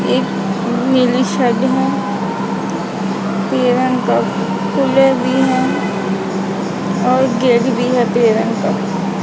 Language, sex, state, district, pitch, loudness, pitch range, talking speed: Hindi, female, Punjab, Pathankot, 245 Hz, -15 LUFS, 235-255 Hz, 110 wpm